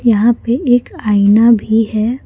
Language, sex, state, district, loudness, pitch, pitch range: Hindi, female, Jharkhand, Palamu, -12 LUFS, 230 Hz, 215-240 Hz